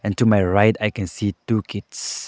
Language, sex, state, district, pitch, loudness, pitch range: English, male, Arunachal Pradesh, Lower Dibang Valley, 105 Hz, -20 LUFS, 100-110 Hz